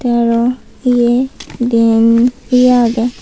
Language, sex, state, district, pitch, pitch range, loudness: Chakma, female, Tripura, Unakoti, 240 Hz, 230-250 Hz, -12 LUFS